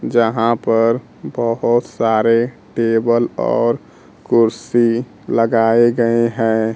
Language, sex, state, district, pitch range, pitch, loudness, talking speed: Hindi, male, Bihar, Kaimur, 115-120 Hz, 115 Hz, -16 LUFS, 90 wpm